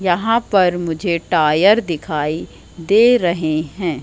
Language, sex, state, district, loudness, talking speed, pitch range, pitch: Hindi, female, Madhya Pradesh, Katni, -16 LUFS, 120 wpm, 160-200 Hz, 175 Hz